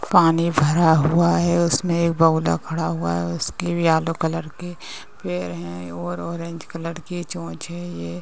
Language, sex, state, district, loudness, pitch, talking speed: Hindi, female, Uttar Pradesh, Ghazipur, -21 LUFS, 165 Hz, 180 wpm